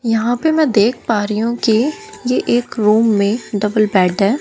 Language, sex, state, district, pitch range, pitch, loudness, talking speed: Hindi, female, Haryana, Jhajjar, 210-245 Hz, 225 Hz, -15 LUFS, 205 wpm